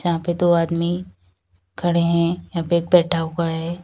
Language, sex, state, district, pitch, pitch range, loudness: Hindi, female, Uttar Pradesh, Lalitpur, 170 Hz, 165-175 Hz, -20 LUFS